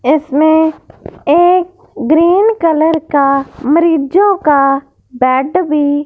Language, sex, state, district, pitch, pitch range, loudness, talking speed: Hindi, female, Punjab, Fazilka, 310 Hz, 280-340 Hz, -11 LUFS, 90 wpm